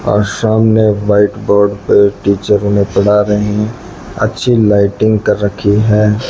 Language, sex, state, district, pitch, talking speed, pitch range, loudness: Hindi, male, Rajasthan, Bikaner, 105 Hz, 135 wpm, 100-110 Hz, -12 LUFS